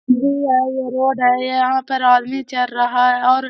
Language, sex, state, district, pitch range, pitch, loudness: Hindi, female, Bihar, Gaya, 250-265 Hz, 255 Hz, -17 LUFS